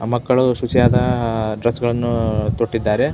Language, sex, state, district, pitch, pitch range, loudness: Kannada, male, Karnataka, Belgaum, 120 Hz, 115-125 Hz, -18 LUFS